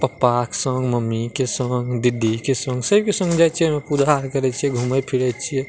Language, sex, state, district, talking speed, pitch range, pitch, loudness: Maithili, male, Bihar, Madhepura, 210 wpm, 125-145 Hz, 130 Hz, -20 LUFS